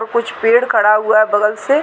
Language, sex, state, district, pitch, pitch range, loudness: Hindi, female, Chhattisgarh, Bilaspur, 220 Hz, 215-235 Hz, -13 LUFS